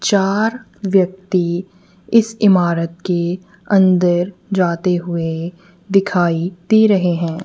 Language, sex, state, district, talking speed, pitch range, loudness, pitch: Hindi, female, Punjab, Kapurthala, 95 wpm, 175-195 Hz, -16 LUFS, 180 Hz